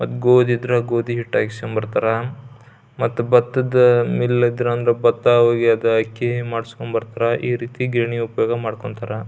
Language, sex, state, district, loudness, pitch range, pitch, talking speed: Kannada, male, Karnataka, Belgaum, -19 LUFS, 115-120 Hz, 120 Hz, 130 wpm